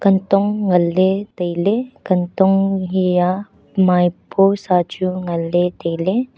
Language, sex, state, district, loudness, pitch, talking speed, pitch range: Wancho, female, Arunachal Pradesh, Longding, -17 LUFS, 185 Hz, 120 wpm, 180-195 Hz